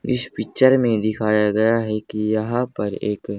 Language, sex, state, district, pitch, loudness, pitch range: Hindi, male, Haryana, Charkhi Dadri, 110 Hz, -20 LUFS, 105-120 Hz